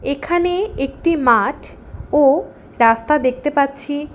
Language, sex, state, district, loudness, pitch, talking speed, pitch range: Bengali, female, West Bengal, Alipurduar, -17 LUFS, 290 Hz, 100 wpm, 270-305 Hz